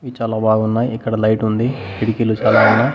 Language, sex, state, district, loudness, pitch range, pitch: Telugu, male, Andhra Pradesh, Annamaya, -16 LUFS, 110-115 Hz, 110 Hz